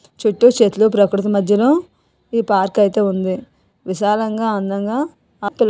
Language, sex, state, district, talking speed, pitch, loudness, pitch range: Telugu, female, Andhra Pradesh, Visakhapatnam, 105 wpm, 210 Hz, -17 LUFS, 200-230 Hz